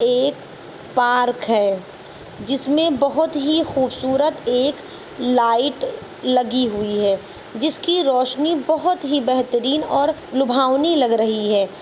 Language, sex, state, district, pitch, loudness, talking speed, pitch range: Hindi, female, Uttar Pradesh, Ghazipur, 265 Hz, -19 LUFS, 110 wpm, 240-300 Hz